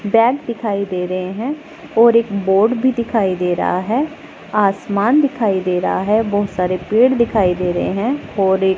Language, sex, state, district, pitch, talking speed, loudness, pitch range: Hindi, female, Punjab, Pathankot, 210 Hz, 185 wpm, -17 LUFS, 190-240 Hz